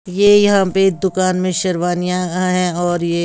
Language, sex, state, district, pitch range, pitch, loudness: Hindi, female, Bihar, West Champaran, 175-190 Hz, 185 Hz, -15 LUFS